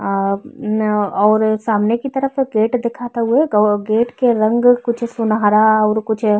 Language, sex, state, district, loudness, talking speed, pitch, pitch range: Bhojpuri, female, Uttar Pradesh, Ghazipur, -16 LUFS, 160 wpm, 220 Hz, 215-235 Hz